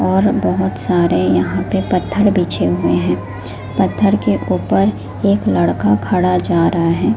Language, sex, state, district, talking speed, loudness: Hindi, female, Delhi, New Delhi, 150 wpm, -15 LUFS